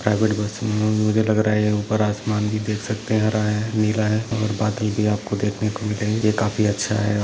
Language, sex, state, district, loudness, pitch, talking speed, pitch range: Hindi, male, Bihar, Jahanabad, -21 LUFS, 105 Hz, 230 wpm, 105-110 Hz